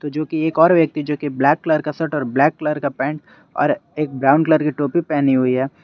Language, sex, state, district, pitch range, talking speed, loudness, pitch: Hindi, male, Jharkhand, Garhwa, 145-155 Hz, 255 wpm, -18 LUFS, 150 Hz